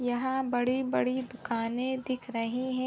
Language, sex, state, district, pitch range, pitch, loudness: Hindi, female, Chhattisgarh, Bilaspur, 240-260 Hz, 250 Hz, -31 LUFS